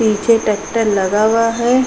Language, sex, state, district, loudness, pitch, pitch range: Hindi, female, Uttar Pradesh, Hamirpur, -15 LUFS, 225 Hz, 210-230 Hz